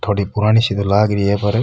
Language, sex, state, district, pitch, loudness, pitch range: Rajasthani, male, Rajasthan, Nagaur, 105 Hz, -16 LUFS, 100-105 Hz